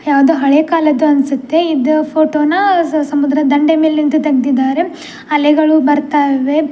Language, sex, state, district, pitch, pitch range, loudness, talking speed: Kannada, female, Karnataka, Dakshina Kannada, 300 Hz, 285-315 Hz, -12 LUFS, 115 wpm